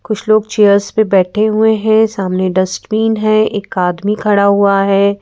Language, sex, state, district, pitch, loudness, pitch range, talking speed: Hindi, female, Madhya Pradesh, Bhopal, 205 Hz, -12 LUFS, 195-215 Hz, 170 wpm